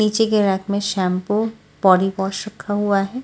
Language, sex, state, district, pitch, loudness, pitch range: Hindi, female, Punjab, Fazilka, 200 Hz, -20 LUFS, 190-215 Hz